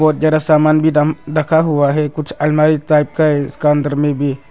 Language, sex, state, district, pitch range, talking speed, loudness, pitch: Hindi, male, Arunachal Pradesh, Longding, 145-155 Hz, 200 wpm, -14 LUFS, 150 Hz